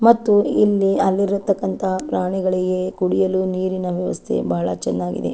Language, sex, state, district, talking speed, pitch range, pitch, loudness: Kannada, female, Karnataka, Chamarajanagar, 100 wpm, 185-195 Hz, 190 Hz, -20 LUFS